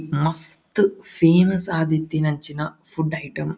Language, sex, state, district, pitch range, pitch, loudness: Tulu, male, Karnataka, Dakshina Kannada, 150-170 Hz, 160 Hz, -21 LUFS